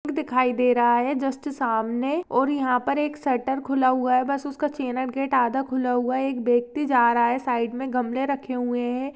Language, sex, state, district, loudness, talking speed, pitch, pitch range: Hindi, female, Maharashtra, Aurangabad, -23 LUFS, 210 wpm, 260 Hz, 245-275 Hz